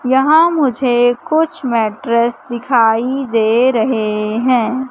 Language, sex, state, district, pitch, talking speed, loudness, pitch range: Hindi, female, Madhya Pradesh, Katni, 245 Hz, 100 wpm, -14 LUFS, 230-265 Hz